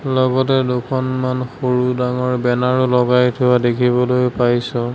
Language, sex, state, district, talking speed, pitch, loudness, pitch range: Assamese, male, Assam, Sonitpur, 110 wpm, 125 Hz, -17 LUFS, 125-130 Hz